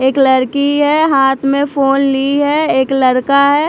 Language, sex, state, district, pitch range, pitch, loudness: Hindi, female, Chhattisgarh, Raipur, 270-285 Hz, 275 Hz, -12 LUFS